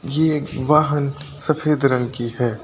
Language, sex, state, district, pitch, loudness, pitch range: Hindi, male, Uttar Pradesh, Lucknow, 140 Hz, -20 LUFS, 130-155 Hz